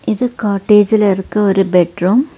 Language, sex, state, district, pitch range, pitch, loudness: Tamil, female, Tamil Nadu, Nilgiris, 190-220 Hz, 205 Hz, -13 LUFS